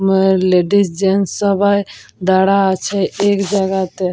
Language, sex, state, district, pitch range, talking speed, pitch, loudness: Bengali, female, West Bengal, Purulia, 190-200 Hz, 115 wpm, 195 Hz, -15 LUFS